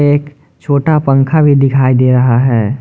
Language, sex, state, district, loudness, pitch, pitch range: Hindi, male, Jharkhand, Garhwa, -11 LUFS, 135 Hz, 130-145 Hz